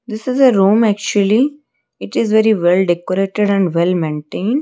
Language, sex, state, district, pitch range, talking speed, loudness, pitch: English, female, Odisha, Malkangiri, 180-225 Hz, 170 wpm, -15 LUFS, 205 Hz